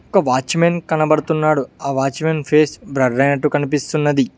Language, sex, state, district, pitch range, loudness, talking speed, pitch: Telugu, male, Telangana, Mahabubabad, 135-155 Hz, -17 LUFS, 125 wpm, 150 Hz